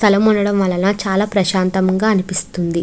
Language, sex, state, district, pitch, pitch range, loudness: Telugu, female, Andhra Pradesh, Krishna, 195 Hz, 185-205 Hz, -16 LUFS